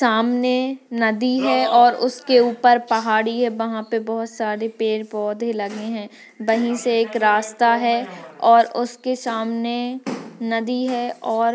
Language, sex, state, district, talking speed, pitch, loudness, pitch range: Hindi, female, Maharashtra, Aurangabad, 150 wpm, 230 Hz, -20 LUFS, 225-245 Hz